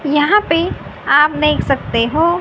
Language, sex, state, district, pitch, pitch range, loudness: Hindi, female, Haryana, Rohtak, 300 Hz, 295-335 Hz, -14 LUFS